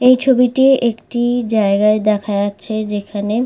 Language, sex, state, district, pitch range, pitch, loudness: Bengali, female, West Bengal, Malda, 210-245 Hz, 220 Hz, -15 LUFS